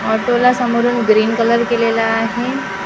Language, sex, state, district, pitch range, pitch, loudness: Marathi, female, Maharashtra, Gondia, 225-240 Hz, 235 Hz, -15 LUFS